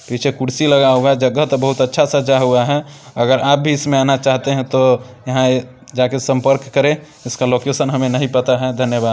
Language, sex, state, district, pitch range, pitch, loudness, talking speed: Maithili, male, Bihar, Samastipur, 125-140 Hz, 130 Hz, -15 LUFS, 205 wpm